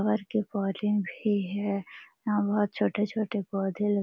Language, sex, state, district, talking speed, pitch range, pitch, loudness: Hindi, female, Bihar, Jamui, 165 wpm, 200-210 Hz, 205 Hz, -29 LUFS